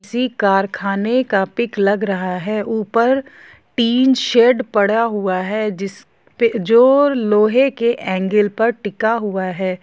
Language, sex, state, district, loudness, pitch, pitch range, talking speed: Hindi, female, Jharkhand, Sahebganj, -16 LUFS, 215 Hz, 200-235 Hz, 135 wpm